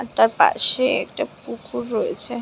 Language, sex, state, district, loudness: Bengali, female, West Bengal, Dakshin Dinajpur, -20 LUFS